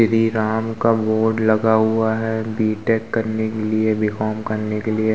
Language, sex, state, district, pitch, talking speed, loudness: Hindi, male, Uttar Pradesh, Muzaffarnagar, 110 Hz, 175 wpm, -19 LUFS